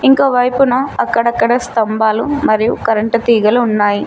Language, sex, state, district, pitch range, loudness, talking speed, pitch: Telugu, female, Telangana, Mahabubabad, 220-255 Hz, -13 LUFS, 120 wpm, 235 Hz